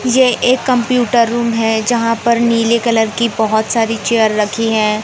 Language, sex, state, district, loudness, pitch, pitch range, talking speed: Hindi, male, Madhya Pradesh, Katni, -14 LUFS, 230 Hz, 220-235 Hz, 180 wpm